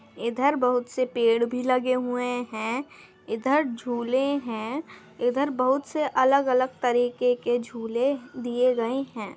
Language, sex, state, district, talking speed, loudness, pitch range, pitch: Hindi, female, Bihar, Madhepura, 135 wpm, -25 LUFS, 240-265 Hz, 250 Hz